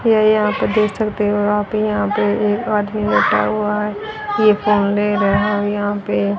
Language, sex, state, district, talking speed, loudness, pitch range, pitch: Hindi, female, Haryana, Rohtak, 215 wpm, -17 LUFS, 205-215 Hz, 210 Hz